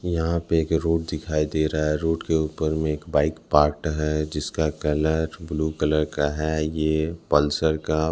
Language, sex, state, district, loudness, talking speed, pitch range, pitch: Hindi, male, Bihar, Patna, -24 LUFS, 185 wpm, 75-80 Hz, 80 Hz